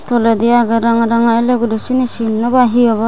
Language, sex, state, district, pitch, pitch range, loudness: Chakma, female, Tripura, West Tripura, 235 Hz, 230-240 Hz, -13 LUFS